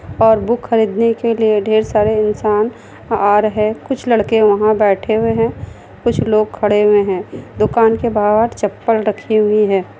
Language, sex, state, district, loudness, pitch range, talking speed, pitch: Hindi, female, Bihar, Kishanganj, -15 LUFS, 210-225 Hz, 170 wpm, 215 Hz